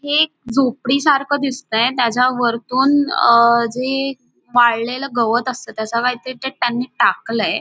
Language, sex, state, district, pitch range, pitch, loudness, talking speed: Marathi, female, Maharashtra, Dhule, 235-270 Hz, 250 Hz, -17 LUFS, 135 wpm